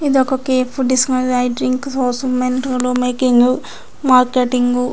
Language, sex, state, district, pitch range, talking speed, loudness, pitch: Telugu, female, Andhra Pradesh, Srikakulam, 250-260 Hz, 95 wpm, -16 LUFS, 255 Hz